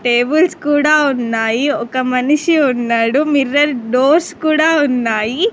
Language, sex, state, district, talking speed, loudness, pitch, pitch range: Telugu, female, Andhra Pradesh, Sri Satya Sai, 110 wpm, -14 LUFS, 280 Hz, 245-305 Hz